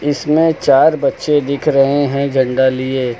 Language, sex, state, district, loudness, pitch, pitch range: Hindi, male, Uttar Pradesh, Lucknow, -14 LUFS, 140 Hz, 130-150 Hz